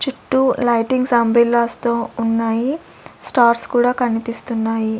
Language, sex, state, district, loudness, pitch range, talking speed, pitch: Telugu, female, Andhra Pradesh, Sri Satya Sai, -17 LUFS, 230-245 Hz, 85 wpm, 235 Hz